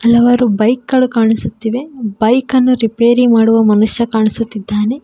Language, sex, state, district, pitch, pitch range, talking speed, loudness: Kannada, female, Karnataka, Koppal, 230 Hz, 220-245 Hz, 120 wpm, -12 LUFS